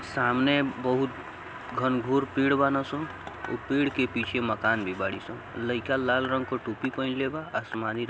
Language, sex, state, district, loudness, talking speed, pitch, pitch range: Hindi, male, Uttar Pradesh, Gorakhpur, -28 LUFS, 180 wpm, 130 Hz, 120-135 Hz